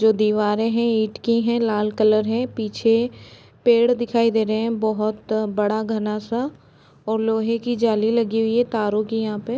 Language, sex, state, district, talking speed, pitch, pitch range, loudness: Hindi, female, Uttar Pradesh, Jalaun, 190 wpm, 220 Hz, 215-230 Hz, -21 LUFS